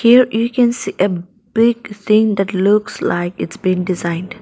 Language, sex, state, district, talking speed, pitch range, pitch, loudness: English, female, Nagaland, Dimapur, 175 wpm, 185-230 Hz, 205 Hz, -16 LUFS